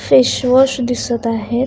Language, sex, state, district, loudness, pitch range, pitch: Marathi, female, Maharashtra, Pune, -15 LUFS, 225-255 Hz, 240 Hz